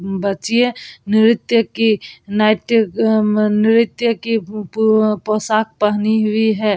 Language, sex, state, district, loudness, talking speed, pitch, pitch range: Hindi, female, Bihar, Vaishali, -16 LUFS, 135 wpm, 215 Hz, 210-225 Hz